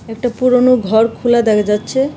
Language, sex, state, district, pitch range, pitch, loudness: Bengali, female, Tripura, West Tripura, 220-250 Hz, 240 Hz, -13 LUFS